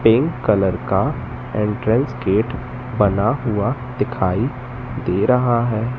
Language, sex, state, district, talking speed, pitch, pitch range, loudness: Hindi, male, Madhya Pradesh, Katni, 110 wpm, 120 Hz, 105-125 Hz, -19 LUFS